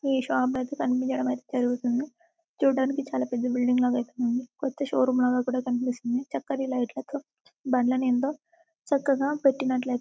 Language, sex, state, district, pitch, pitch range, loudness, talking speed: Telugu, female, Telangana, Karimnagar, 255 Hz, 250-275 Hz, -27 LUFS, 150 wpm